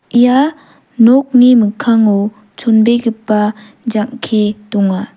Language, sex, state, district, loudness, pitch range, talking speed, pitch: Garo, female, Meghalaya, South Garo Hills, -12 LUFS, 210-245 Hz, 70 wpm, 225 Hz